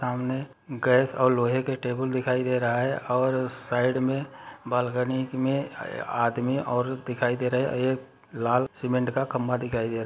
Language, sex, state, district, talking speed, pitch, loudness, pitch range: Hindi, male, Chhattisgarh, Bastar, 185 wpm, 125 Hz, -26 LUFS, 125-130 Hz